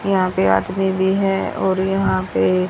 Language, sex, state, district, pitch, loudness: Hindi, female, Haryana, Rohtak, 190 Hz, -18 LUFS